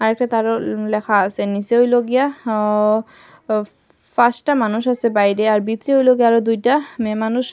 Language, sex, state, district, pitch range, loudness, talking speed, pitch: Bengali, female, Assam, Hailakandi, 215-245 Hz, -17 LUFS, 165 wpm, 225 Hz